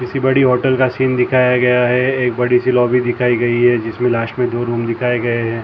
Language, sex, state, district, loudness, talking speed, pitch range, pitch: Hindi, male, Maharashtra, Mumbai Suburban, -15 LUFS, 245 wpm, 120-125 Hz, 125 Hz